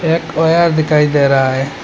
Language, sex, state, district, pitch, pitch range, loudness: Hindi, male, Assam, Hailakandi, 155 Hz, 135-165 Hz, -13 LUFS